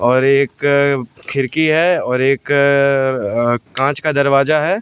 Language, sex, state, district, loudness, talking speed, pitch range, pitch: Hindi, male, Bihar, West Champaran, -15 LUFS, 135 wpm, 130-140 Hz, 140 Hz